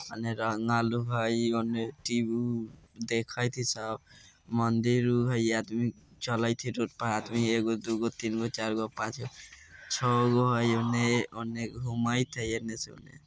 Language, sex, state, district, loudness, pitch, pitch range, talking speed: Bajjika, male, Bihar, Vaishali, -30 LUFS, 115 Hz, 115-120 Hz, 145 wpm